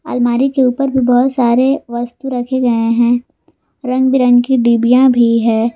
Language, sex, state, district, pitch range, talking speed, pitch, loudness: Hindi, female, Jharkhand, Garhwa, 235-260 Hz, 155 wpm, 245 Hz, -13 LUFS